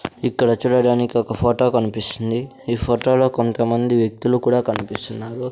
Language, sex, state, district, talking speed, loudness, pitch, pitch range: Telugu, male, Andhra Pradesh, Sri Satya Sai, 120 wpm, -19 LUFS, 120 Hz, 115-125 Hz